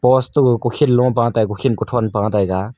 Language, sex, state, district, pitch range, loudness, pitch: Wancho, male, Arunachal Pradesh, Longding, 110-125 Hz, -17 LUFS, 120 Hz